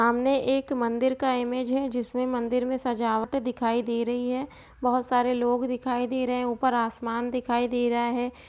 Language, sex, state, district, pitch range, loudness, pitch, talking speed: Hindi, female, Bihar, East Champaran, 240-255 Hz, -26 LUFS, 245 Hz, 190 wpm